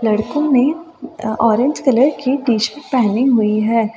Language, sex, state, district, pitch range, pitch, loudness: Hindi, female, Delhi, New Delhi, 220-280 Hz, 250 Hz, -16 LUFS